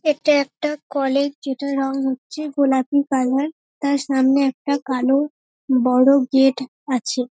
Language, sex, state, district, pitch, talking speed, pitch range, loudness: Bengali, female, West Bengal, North 24 Parganas, 275 Hz, 130 wpm, 265-285 Hz, -20 LUFS